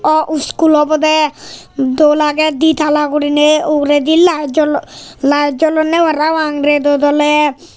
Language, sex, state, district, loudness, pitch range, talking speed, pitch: Chakma, male, Tripura, Unakoti, -12 LUFS, 295-310 Hz, 125 wpm, 300 Hz